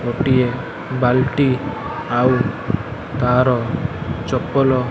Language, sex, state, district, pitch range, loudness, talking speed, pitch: Odia, male, Odisha, Malkangiri, 120-135 Hz, -19 LUFS, 75 wpm, 125 Hz